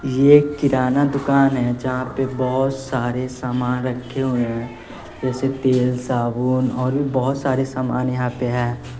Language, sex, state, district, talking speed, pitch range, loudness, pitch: Hindi, female, Bihar, West Champaran, 160 wpm, 125-135 Hz, -20 LUFS, 130 Hz